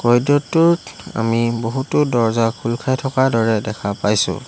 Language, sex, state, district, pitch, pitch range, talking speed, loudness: Assamese, male, Assam, Hailakandi, 120 Hz, 115-135 Hz, 120 wpm, -18 LUFS